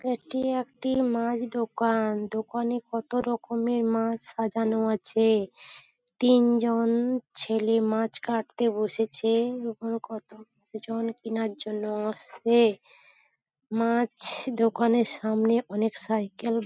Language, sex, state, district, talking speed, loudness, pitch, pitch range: Bengali, female, West Bengal, Paschim Medinipur, 95 wpm, -27 LUFS, 230 Hz, 220-235 Hz